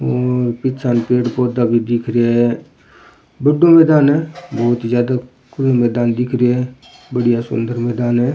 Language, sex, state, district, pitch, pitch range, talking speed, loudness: Rajasthani, male, Rajasthan, Churu, 120 Hz, 120-130 Hz, 165 wpm, -15 LUFS